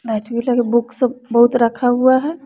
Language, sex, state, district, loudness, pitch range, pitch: Hindi, female, Bihar, West Champaran, -16 LUFS, 235-255 Hz, 245 Hz